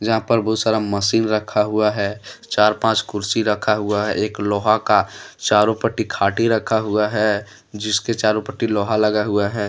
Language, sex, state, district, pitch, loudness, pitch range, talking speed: Hindi, male, Jharkhand, Deoghar, 105 Hz, -19 LUFS, 105-110 Hz, 185 wpm